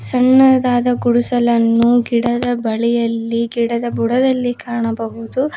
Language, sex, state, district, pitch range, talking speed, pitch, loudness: Kannada, female, Karnataka, Koppal, 230-245 Hz, 75 wpm, 240 Hz, -15 LUFS